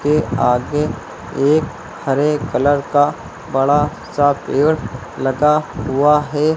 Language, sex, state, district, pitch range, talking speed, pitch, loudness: Hindi, male, Uttar Pradesh, Lucknow, 135-150 Hz, 110 wpm, 145 Hz, -17 LUFS